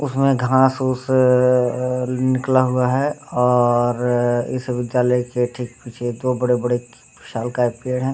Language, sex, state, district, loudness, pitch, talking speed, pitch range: Hindi, male, Jharkhand, Sahebganj, -19 LUFS, 125 Hz, 155 wpm, 120-130 Hz